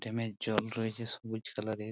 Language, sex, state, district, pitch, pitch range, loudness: Bengali, male, West Bengal, Purulia, 110 Hz, 110-115 Hz, -36 LUFS